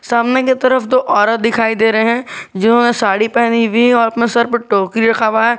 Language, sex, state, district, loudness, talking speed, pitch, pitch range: Hindi, male, Jharkhand, Garhwa, -13 LUFS, 215 wpm, 230 Hz, 220-240 Hz